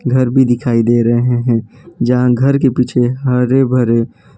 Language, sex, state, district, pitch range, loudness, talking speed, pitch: Hindi, male, Gujarat, Valsad, 120-130 Hz, -13 LUFS, 180 wpm, 125 Hz